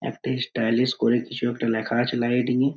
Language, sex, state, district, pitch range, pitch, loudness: Bengali, male, West Bengal, Purulia, 115-125 Hz, 120 Hz, -24 LUFS